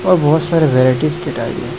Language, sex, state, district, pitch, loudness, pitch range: Hindi, male, Assam, Hailakandi, 155 Hz, -14 LUFS, 140-165 Hz